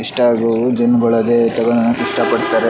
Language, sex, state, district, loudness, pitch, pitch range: Kannada, male, Karnataka, Shimoga, -14 LUFS, 115 Hz, 115-120 Hz